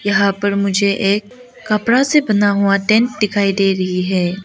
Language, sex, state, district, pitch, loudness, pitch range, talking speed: Hindi, female, Arunachal Pradesh, Lower Dibang Valley, 200 Hz, -15 LUFS, 195-215 Hz, 175 wpm